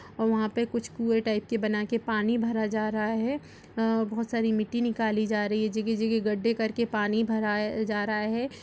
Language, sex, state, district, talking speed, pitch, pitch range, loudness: Hindi, female, Bihar, Gaya, 215 wpm, 220 Hz, 215-230 Hz, -28 LUFS